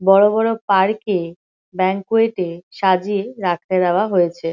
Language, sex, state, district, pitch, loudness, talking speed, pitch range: Bengali, female, West Bengal, Kolkata, 190 Hz, -18 LUFS, 130 wpm, 180-205 Hz